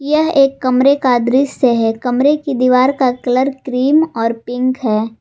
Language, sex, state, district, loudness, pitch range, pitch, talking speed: Hindi, female, Jharkhand, Garhwa, -14 LUFS, 245-275 Hz, 255 Hz, 175 wpm